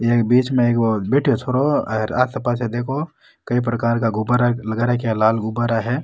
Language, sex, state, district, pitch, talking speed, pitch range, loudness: Rajasthani, male, Rajasthan, Nagaur, 120 Hz, 210 wpm, 115-125 Hz, -19 LUFS